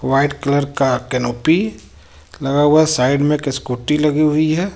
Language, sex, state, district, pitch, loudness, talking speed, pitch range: Hindi, male, Jharkhand, Ranchi, 140 Hz, -16 LUFS, 175 wpm, 125-150 Hz